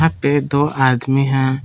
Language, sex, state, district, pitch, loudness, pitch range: Hindi, male, Jharkhand, Palamu, 135 Hz, -16 LUFS, 130-145 Hz